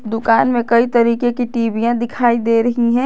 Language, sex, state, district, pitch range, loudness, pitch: Hindi, female, Jharkhand, Garhwa, 230-245 Hz, -15 LUFS, 235 Hz